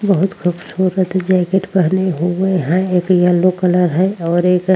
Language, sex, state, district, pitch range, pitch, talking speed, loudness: Hindi, female, Uttar Pradesh, Jyotiba Phule Nagar, 180-185 Hz, 185 Hz, 165 wpm, -15 LUFS